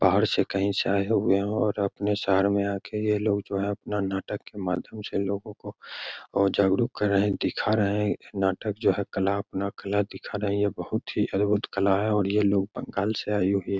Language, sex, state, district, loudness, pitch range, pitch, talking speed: Hindi, male, Bihar, Begusarai, -26 LUFS, 100-105 Hz, 100 Hz, 230 wpm